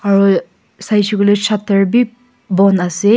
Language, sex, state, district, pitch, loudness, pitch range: Nagamese, female, Nagaland, Kohima, 205 Hz, -14 LUFS, 195-215 Hz